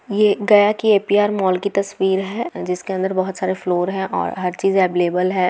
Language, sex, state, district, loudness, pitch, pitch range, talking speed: Magahi, female, Bihar, Gaya, -18 LUFS, 190 Hz, 185-205 Hz, 205 wpm